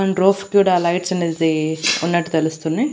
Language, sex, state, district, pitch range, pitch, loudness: Telugu, female, Andhra Pradesh, Annamaya, 160-190 Hz, 170 Hz, -18 LUFS